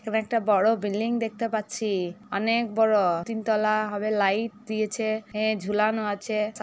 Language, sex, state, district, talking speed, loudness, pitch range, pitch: Bengali, female, West Bengal, Jhargram, 155 wpm, -26 LUFS, 210-220 Hz, 215 Hz